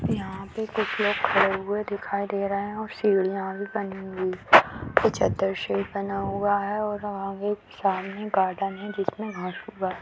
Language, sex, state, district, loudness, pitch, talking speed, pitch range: Hindi, female, Uttar Pradesh, Deoria, -26 LUFS, 200 Hz, 185 wpm, 195-205 Hz